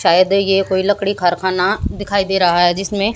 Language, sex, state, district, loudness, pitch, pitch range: Hindi, female, Haryana, Jhajjar, -16 LUFS, 195 Hz, 180-200 Hz